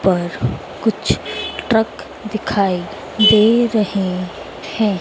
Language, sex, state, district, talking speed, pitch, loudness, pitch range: Hindi, female, Madhya Pradesh, Dhar, 85 wpm, 215 Hz, -17 LUFS, 185-220 Hz